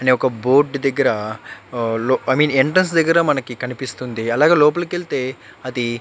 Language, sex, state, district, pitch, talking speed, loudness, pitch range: Telugu, male, Andhra Pradesh, Chittoor, 130 Hz, 140 wpm, -18 LUFS, 120-150 Hz